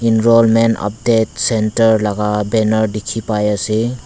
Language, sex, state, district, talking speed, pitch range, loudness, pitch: Nagamese, male, Nagaland, Dimapur, 120 wpm, 105-115 Hz, -15 LUFS, 110 Hz